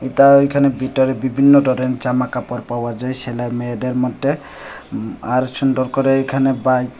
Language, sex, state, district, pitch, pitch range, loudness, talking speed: Bengali, male, Tripura, West Tripura, 130 Hz, 125-135 Hz, -17 LUFS, 145 wpm